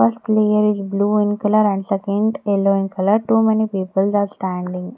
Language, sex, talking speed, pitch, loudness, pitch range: English, female, 195 wpm, 205 Hz, -18 LUFS, 195-210 Hz